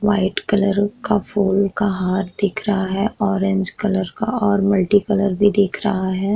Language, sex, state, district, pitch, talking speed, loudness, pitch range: Hindi, female, Bihar, Vaishali, 200 Hz, 180 wpm, -19 LUFS, 195-205 Hz